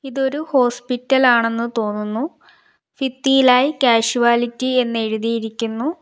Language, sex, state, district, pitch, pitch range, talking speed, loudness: Malayalam, female, Kerala, Kollam, 245 Hz, 230-265 Hz, 80 wpm, -18 LUFS